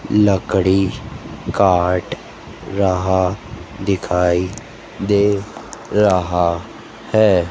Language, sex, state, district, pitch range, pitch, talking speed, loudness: Hindi, female, Madhya Pradesh, Dhar, 90-105 Hz, 95 Hz, 55 wpm, -17 LUFS